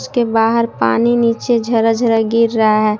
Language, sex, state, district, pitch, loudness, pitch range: Hindi, female, Jharkhand, Palamu, 225 Hz, -14 LUFS, 220-235 Hz